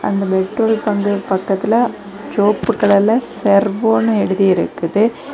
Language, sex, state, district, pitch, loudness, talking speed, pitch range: Tamil, female, Tamil Nadu, Kanyakumari, 205 Hz, -16 LUFS, 90 wpm, 195-225 Hz